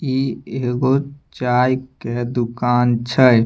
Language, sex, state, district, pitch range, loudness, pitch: Maithili, male, Bihar, Samastipur, 120-130 Hz, -19 LUFS, 125 Hz